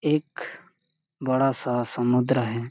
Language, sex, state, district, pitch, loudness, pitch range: Hindi, male, Chhattisgarh, Sarguja, 130 Hz, -24 LUFS, 125-150 Hz